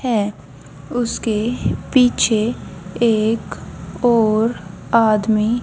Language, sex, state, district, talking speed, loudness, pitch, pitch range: Hindi, female, Haryana, Jhajjar, 65 wpm, -18 LUFS, 220 Hz, 190-230 Hz